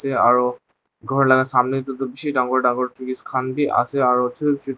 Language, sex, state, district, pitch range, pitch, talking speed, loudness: Nagamese, male, Nagaland, Dimapur, 125-135 Hz, 130 Hz, 200 wpm, -20 LUFS